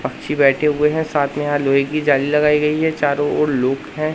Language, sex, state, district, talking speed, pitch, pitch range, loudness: Hindi, male, Madhya Pradesh, Katni, 245 wpm, 145 Hz, 140-150 Hz, -17 LUFS